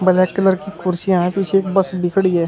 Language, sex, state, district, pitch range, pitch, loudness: Hindi, male, Uttar Pradesh, Shamli, 180-195 Hz, 185 Hz, -17 LUFS